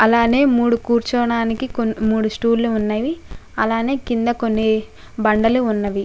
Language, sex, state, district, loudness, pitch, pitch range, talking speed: Telugu, female, Andhra Pradesh, Guntur, -18 LUFS, 230 Hz, 220-240 Hz, 130 wpm